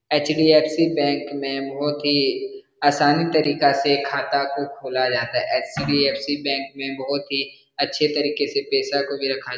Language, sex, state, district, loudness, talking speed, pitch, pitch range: Hindi, male, Bihar, Jahanabad, -21 LUFS, 165 wpm, 145 Hz, 140-150 Hz